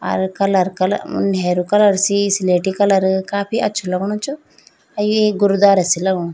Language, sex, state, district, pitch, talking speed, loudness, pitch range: Garhwali, female, Uttarakhand, Tehri Garhwal, 195 Hz, 180 wpm, -16 LUFS, 185-205 Hz